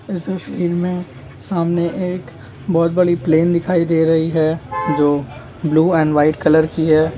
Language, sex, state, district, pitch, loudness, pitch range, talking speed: Hindi, male, Jharkhand, Jamtara, 165 Hz, -17 LUFS, 155-175 Hz, 160 wpm